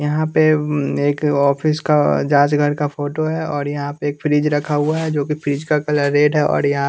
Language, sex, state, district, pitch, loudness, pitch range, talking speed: Hindi, male, Bihar, West Champaran, 145 Hz, -18 LUFS, 145-150 Hz, 245 wpm